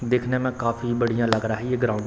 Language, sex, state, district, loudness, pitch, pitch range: Hindi, male, Bihar, Samastipur, -24 LUFS, 120 Hz, 115-125 Hz